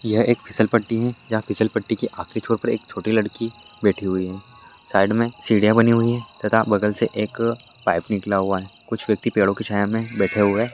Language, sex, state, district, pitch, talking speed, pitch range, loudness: Hindi, male, Maharashtra, Chandrapur, 110 Hz, 195 wpm, 105-115 Hz, -21 LUFS